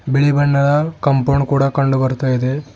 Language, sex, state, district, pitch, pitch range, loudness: Kannada, male, Karnataka, Bidar, 140 Hz, 135-145 Hz, -16 LUFS